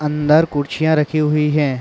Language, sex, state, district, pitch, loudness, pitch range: Hindi, male, Uttar Pradesh, Varanasi, 150 Hz, -16 LUFS, 150-155 Hz